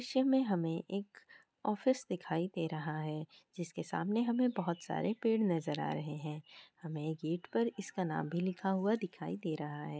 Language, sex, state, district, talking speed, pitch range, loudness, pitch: Hindi, female, Bihar, Kishanganj, 185 wpm, 160-210 Hz, -36 LUFS, 180 Hz